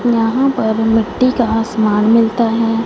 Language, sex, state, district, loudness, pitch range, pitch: Hindi, female, Punjab, Fazilka, -14 LUFS, 225-235 Hz, 225 Hz